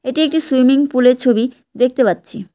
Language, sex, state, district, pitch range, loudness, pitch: Bengali, female, West Bengal, Cooch Behar, 250-275 Hz, -15 LUFS, 260 Hz